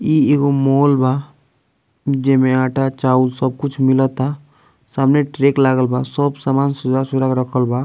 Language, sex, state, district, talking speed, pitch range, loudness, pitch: Bhojpuri, male, Bihar, East Champaran, 155 wpm, 130-140 Hz, -16 LUFS, 135 Hz